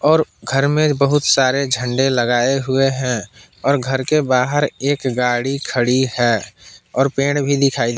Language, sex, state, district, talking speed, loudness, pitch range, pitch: Hindi, male, Jharkhand, Palamu, 160 wpm, -17 LUFS, 125-140 Hz, 135 Hz